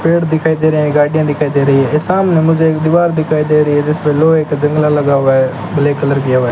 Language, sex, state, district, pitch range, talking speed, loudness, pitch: Hindi, male, Rajasthan, Bikaner, 145-160 Hz, 275 wpm, -12 LUFS, 150 Hz